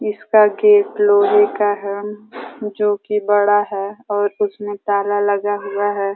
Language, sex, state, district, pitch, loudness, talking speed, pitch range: Hindi, female, Uttar Pradesh, Ghazipur, 205 Hz, -17 LUFS, 145 wpm, 205-215 Hz